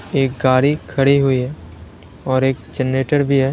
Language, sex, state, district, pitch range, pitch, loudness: Hindi, male, Uttar Pradesh, Lalitpur, 125-140 Hz, 130 Hz, -17 LUFS